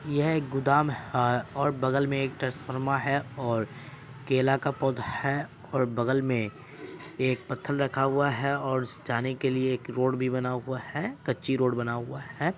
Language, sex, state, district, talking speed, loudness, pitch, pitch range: Hindi, male, Bihar, Saharsa, 175 wpm, -28 LUFS, 135 Hz, 125-140 Hz